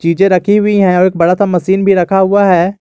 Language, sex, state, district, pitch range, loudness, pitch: Hindi, male, Jharkhand, Garhwa, 180-200 Hz, -10 LUFS, 190 Hz